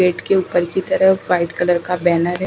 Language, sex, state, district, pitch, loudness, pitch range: Hindi, female, Odisha, Khordha, 180 Hz, -17 LUFS, 175-190 Hz